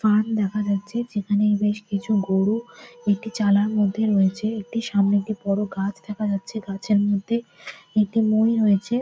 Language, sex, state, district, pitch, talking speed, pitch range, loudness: Bengali, female, West Bengal, Jhargram, 210 Hz, 155 wpm, 200-220 Hz, -23 LUFS